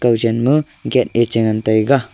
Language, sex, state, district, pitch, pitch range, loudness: Wancho, male, Arunachal Pradesh, Longding, 120 Hz, 115-140 Hz, -16 LUFS